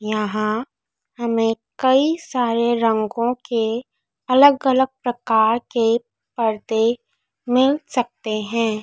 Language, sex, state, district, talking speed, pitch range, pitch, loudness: Hindi, female, Madhya Pradesh, Dhar, 95 wpm, 225-255 Hz, 235 Hz, -20 LUFS